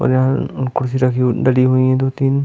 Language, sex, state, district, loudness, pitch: Hindi, male, Uttar Pradesh, Hamirpur, -16 LUFS, 130 Hz